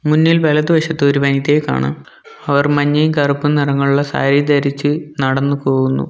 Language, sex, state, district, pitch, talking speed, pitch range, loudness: Malayalam, male, Kerala, Kollam, 145 Hz, 130 wpm, 140-150 Hz, -15 LUFS